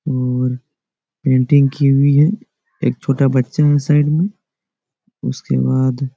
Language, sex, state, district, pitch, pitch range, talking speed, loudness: Hindi, male, Chhattisgarh, Bastar, 140 Hz, 130-150 Hz, 115 wpm, -16 LUFS